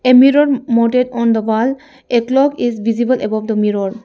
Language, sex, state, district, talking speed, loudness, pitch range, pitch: English, female, Arunachal Pradesh, Lower Dibang Valley, 195 wpm, -14 LUFS, 225-260 Hz, 240 Hz